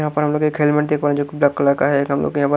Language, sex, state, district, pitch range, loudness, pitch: Hindi, male, Haryana, Rohtak, 140-150 Hz, -18 LUFS, 145 Hz